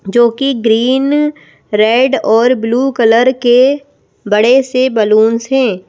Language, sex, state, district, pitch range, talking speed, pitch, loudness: Hindi, female, Madhya Pradesh, Bhopal, 225-265 Hz, 120 wpm, 245 Hz, -11 LUFS